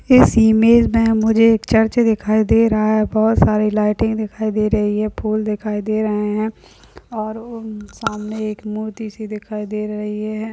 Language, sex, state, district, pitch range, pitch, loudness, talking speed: Hindi, female, Uttar Pradesh, Ghazipur, 210-220 Hz, 215 Hz, -17 LUFS, 175 wpm